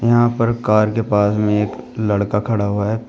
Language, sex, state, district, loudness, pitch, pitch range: Hindi, male, Uttar Pradesh, Shamli, -18 LUFS, 110 Hz, 105-115 Hz